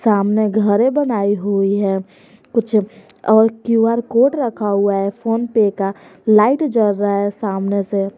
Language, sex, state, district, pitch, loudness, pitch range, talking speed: Hindi, female, Jharkhand, Garhwa, 210 Hz, -17 LUFS, 200-230 Hz, 145 wpm